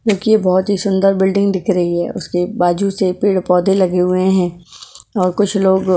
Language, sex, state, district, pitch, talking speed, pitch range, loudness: Hindi, female, Goa, North and South Goa, 190 Hz, 200 wpm, 180-195 Hz, -15 LUFS